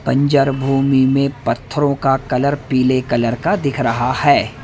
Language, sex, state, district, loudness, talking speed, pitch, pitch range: Hindi, male, Madhya Pradesh, Umaria, -16 LUFS, 155 wpm, 135 Hz, 125-140 Hz